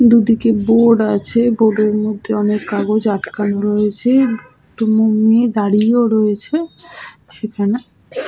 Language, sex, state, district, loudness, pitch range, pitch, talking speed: Bengali, female, West Bengal, Malda, -15 LUFS, 210-235 Hz, 220 Hz, 100 wpm